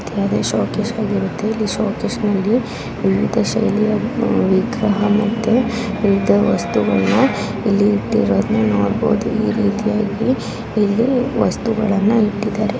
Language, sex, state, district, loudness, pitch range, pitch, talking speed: Kannada, female, Karnataka, Belgaum, -17 LUFS, 205-225 Hz, 215 Hz, 85 wpm